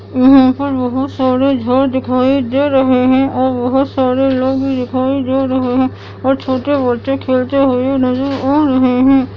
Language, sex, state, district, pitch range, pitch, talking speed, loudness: Hindi, female, Andhra Pradesh, Anantapur, 255-270 Hz, 260 Hz, 165 wpm, -13 LUFS